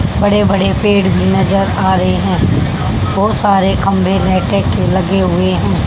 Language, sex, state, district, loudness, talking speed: Hindi, female, Haryana, Charkhi Dadri, -13 LUFS, 165 wpm